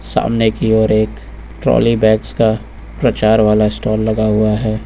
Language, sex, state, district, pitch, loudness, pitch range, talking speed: Hindi, male, Uttar Pradesh, Lucknow, 110 Hz, -14 LUFS, 105-110 Hz, 160 wpm